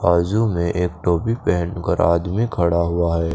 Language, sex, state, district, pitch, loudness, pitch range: Hindi, male, Chandigarh, Chandigarh, 85 Hz, -20 LUFS, 85-95 Hz